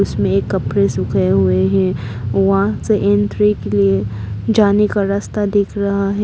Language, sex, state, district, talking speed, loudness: Hindi, female, Arunachal Pradesh, Papum Pare, 165 wpm, -16 LUFS